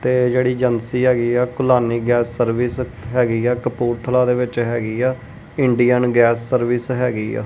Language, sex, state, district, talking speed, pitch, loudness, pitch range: Punjabi, male, Punjab, Kapurthala, 160 wpm, 125 Hz, -18 LUFS, 120-125 Hz